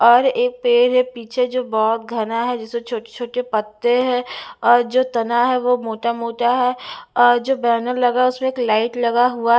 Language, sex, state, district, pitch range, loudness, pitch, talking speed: Hindi, female, Bihar, West Champaran, 235-250 Hz, -18 LUFS, 240 Hz, 185 wpm